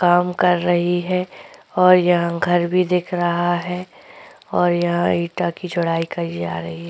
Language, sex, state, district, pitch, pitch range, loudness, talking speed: Hindi, female, Chhattisgarh, Korba, 175 Hz, 170-180 Hz, -19 LUFS, 175 wpm